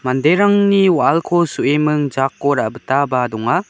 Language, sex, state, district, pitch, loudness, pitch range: Garo, male, Meghalaya, West Garo Hills, 150 Hz, -16 LUFS, 135-175 Hz